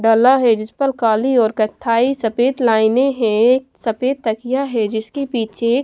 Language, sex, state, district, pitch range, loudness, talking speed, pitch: Hindi, female, Chhattisgarh, Raipur, 225-260 Hz, -17 LUFS, 165 wpm, 235 Hz